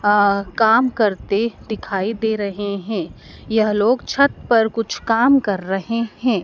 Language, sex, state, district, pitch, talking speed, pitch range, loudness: Hindi, female, Madhya Pradesh, Dhar, 220 Hz, 150 wpm, 200-230 Hz, -19 LUFS